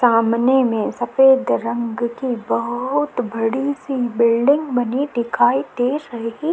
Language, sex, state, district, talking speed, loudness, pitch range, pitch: Hindi, female, Uttar Pradesh, Jyotiba Phule Nagar, 130 wpm, -19 LUFS, 235-265 Hz, 245 Hz